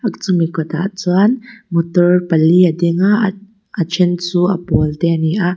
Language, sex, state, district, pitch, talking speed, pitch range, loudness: Mizo, female, Mizoram, Aizawl, 180 Hz, 185 wpm, 170-195 Hz, -15 LUFS